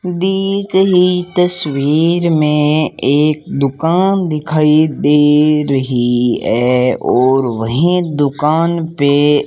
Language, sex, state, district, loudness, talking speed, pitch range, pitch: Hindi, male, Rajasthan, Bikaner, -13 LUFS, 95 wpm, 140-175 Hz, 150 Hz